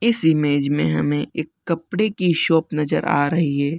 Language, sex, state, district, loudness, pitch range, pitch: Hindi, male, Bihar, Begusarai, -20 LUFS, 145-170 Hz, 155 Hz